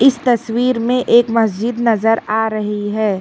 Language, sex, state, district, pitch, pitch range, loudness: Hindi, female, Karnataka, Bangalore, 230 Hz, 215-240 Hz, -16 LUFS